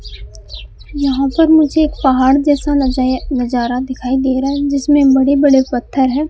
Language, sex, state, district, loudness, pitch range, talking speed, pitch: Hindi, male, Rajasthan, Bikaner, -13 LUFS, 260-290 Hz, 160 wpm, 275 Hz